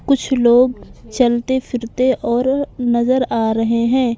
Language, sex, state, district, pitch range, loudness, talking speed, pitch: Hindi, female, Maharashtra, Mumbai Suburban, 235-260 Hz, -16 LUFS, 130 wpm, 245 Hz